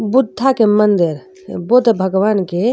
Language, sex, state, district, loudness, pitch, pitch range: Bhojpuri, female, Uttar Pradesh, Gorakhpur, -14 LUFS, 215 Hz, 190-245 Hz